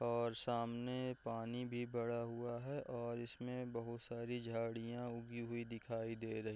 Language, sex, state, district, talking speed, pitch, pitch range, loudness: Hindi, male, Chhattisgarh, Raigarh, 175 wpm, 120 Hz, 115-120 Hz, -44 LUFS